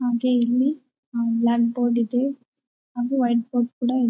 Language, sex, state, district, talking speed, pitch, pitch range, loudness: Kannada, female, Karnataka, Bellary, 160 wpm, 245 Hz, 235-255 Hz, -22 LUFS